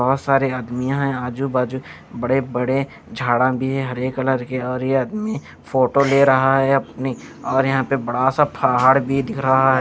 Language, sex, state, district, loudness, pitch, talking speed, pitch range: Hindi, male, Chandigarh, Chandigarh, -19 LUFS, 130 Hz, 190 wpm, 125-135 Hz